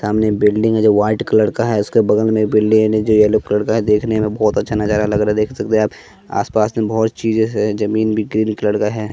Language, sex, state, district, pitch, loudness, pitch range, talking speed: Hindi, male, Bihar, West Champaran, 110 Hz, -16 LUFS, 105-110 Hz, 265 wpm